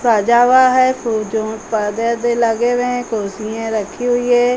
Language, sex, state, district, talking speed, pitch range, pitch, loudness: Hindi, female, Uttar Pradesh, Hamirpur, 185 wpm, 220-245 Hz, 235 Hz, -16 LUFS